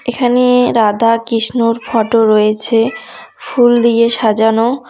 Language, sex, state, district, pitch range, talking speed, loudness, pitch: Bengali, female, West Bengal, Cooch Behar, 225-245 Hz, 85 wpm, -12 LUFS, 230 Hz